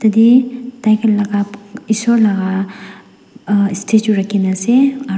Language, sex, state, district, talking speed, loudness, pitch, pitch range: Nagamese, female, Nagaland, Dimapur, 125 wpm, -14 LUFS, 215 Hz, 200-235 Hz